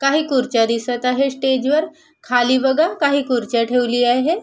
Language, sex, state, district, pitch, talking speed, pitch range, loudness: Marathi, female, Maharashtra, Sindhudurg, 260 Hz, 160 wpm, 245-285 Hz, -17 LUFS